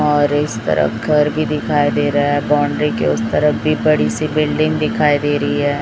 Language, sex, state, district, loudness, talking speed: Hindi, male, Chhattisgarh, Raipur, -16 LUFS, 215 wpm